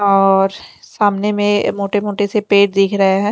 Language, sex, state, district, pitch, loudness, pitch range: Hindi, female, Chandigarh, Chandigarh, 200 Hz, -15 LUFS, 195-205 Hz